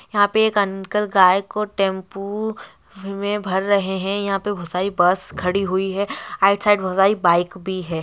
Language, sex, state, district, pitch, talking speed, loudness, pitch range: Hindi, female, West Bengal, Purulia, 195 Hz, 180 wpm, -20 LUFS, 190-205 Hz